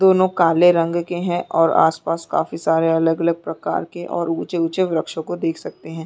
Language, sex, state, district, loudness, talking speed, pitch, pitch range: Hindi, female, Chhattisgarh, Bilaspur, -19 LUFS, 220 wpm, 165 Hz, 165-175 Hz